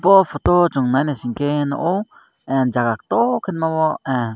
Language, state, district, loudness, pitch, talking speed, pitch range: Kokborok, Tripura, Dhalai, -19 LUFS, 145 Hz, 165 wpm, 130-175 Hz